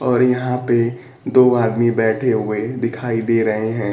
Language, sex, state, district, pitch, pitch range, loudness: Hindi, male, Bihar, Kaimur, 115 Hz, 115-125 Hz, -18 LUFS